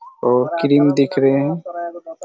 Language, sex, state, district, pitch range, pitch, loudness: Hindi, male, Chhattisgarh, Raigarh, 135-175 Hz, 145 Hz, -16 LUFS